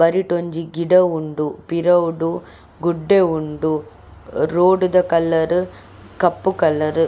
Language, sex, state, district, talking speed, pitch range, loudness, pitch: Tulu, female, Karnataka, Dakshina Kannada, 110 wpm, 160-175 Hz, -18 LUFS, 165 Hz